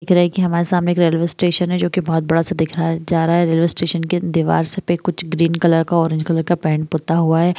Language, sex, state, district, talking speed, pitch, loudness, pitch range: Hindi, female, Bihar, Madhepura, 235 wpm, 170 Hz, -17 LUFS, 165-175 Hz